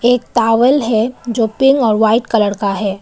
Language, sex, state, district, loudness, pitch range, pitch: Hindi, female, Arunachal Pradesh, Papum Pare, -14 LUFS, 220-245 Hz, 230 Hz